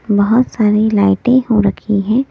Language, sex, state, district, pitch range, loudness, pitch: Hindi, female, Delhi, New Delhi, 205-240 Hz, -13 LUFS, 215 Hz